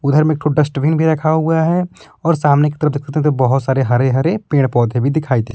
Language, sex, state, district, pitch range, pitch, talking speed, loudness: Hindi, male, Jharkhand, Palamu, 135-160 Hz, 150 Hz, 240 wpm, -15 LUFS